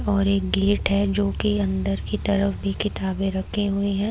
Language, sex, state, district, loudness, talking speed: Hindi, female, Uttar Pradesh, Lucknow, -23 LUFS, 205 wpm